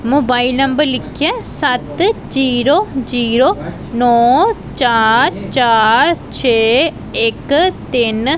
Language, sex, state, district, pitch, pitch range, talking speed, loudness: Punjabi, female, Punjab, Pathankot, 250 Hz, 235-280 Hz, 95 wpm, -13 LUFS